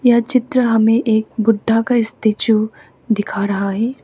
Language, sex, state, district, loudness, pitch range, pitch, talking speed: Hindi, female, Arunachal Pradesh, Papum Pare, -16 LUFS, 215-235 Hz, 225 Hz, 150 wpm